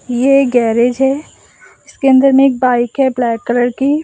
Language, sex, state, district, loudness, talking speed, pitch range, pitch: Hindi, male, Assam, Sonitpur, -13 LUFS, 180 wpm, 245-275 Hz, 260 Hz